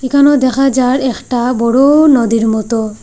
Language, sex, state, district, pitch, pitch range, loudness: Bengali, female, Assam, Hailakandi, 255 Hz, 230-270 Hz, -11 LUFS